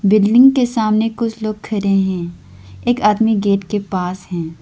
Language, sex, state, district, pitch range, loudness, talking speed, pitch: Hindi, female, Arunachal Pradesh, Lower Dibang Valley, 185-220 Hz, -16 LUFS, 170 wpm, 210 Hz